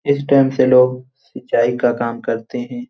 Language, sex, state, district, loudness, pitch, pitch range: Hindi, male, Jharkhand, Jamtara, -16 LUFS, 130 Hz, 125-140 Hz